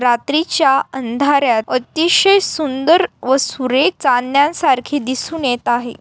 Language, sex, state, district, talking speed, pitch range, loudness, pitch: Marathi, female, Maharashtra, Aurangabad, 110 wpm, 250-315 Hz, -15 LUFS, 275 Hz